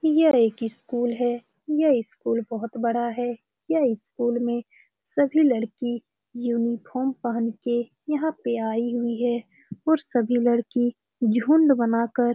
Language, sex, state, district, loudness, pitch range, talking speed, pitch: Hindi, female, Bihar, Saran, -24 LUFS, 235-260 Hz, 150 wpm, 240 Hz